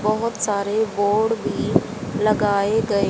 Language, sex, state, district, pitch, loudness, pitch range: Hindi, female, Haryana, Charkhi Dadri, 215 Hz, -21 LUFS, 205-220 Hz